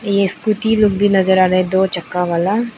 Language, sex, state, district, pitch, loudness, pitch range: Hindi, female, Arunachal Pradesh, Lower Dibang Valley, 195 Hz, -15 LUFS, 185-210 Hz